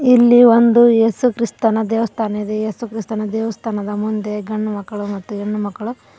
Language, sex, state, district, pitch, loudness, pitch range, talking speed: Kannada, female, Karnataka, Koppal, 220 Hz, -17 LUFS, 210-230 Hz, 135 wpm